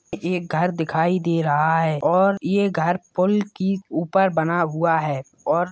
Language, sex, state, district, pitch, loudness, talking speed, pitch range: Hindi, male, Bihar, Purnia, 170 Hz, -21 LUFS, 170 wpm, 160-185 Hz